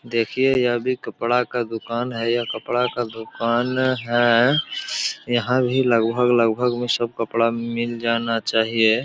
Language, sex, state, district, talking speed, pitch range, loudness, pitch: Hindi, male, Bihar, Supaul, 140 wpm, 115-125 Hz, -21 LUFS, 120 Hz